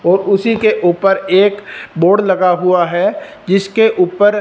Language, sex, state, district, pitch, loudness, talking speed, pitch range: Hindi, male, Punjab, Fazilka, 195 Hz, -13 LUFS, 150 wpm, 180-210 Hz